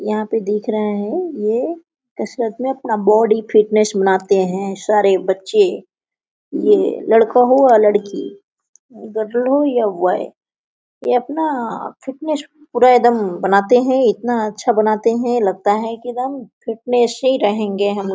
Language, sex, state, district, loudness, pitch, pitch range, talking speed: Hindi, female, Jharkhand, Sahebganj, -16 LUFS, 225 Hz, 210-260 Hz, 140 wpm